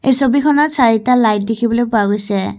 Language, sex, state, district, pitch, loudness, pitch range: Assamese, female, Assam, Kamrup Metropolitan, 235 Hz, -14 LUFS, 215-265 Hz